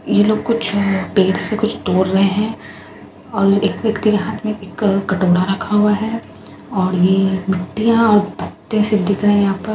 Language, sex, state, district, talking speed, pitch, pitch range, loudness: Hindi, female, Bihar, Katihar, 190 wpm, 205 Hz, 190-215 Hz, -16 LUFS